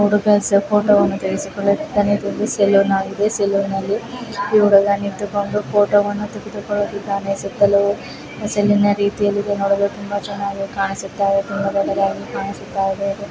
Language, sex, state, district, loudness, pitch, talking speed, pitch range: Kannada, female, Karnataka, Raichur, -18 LUFS, 200 Hz, 130 wpm, 200-205 Hz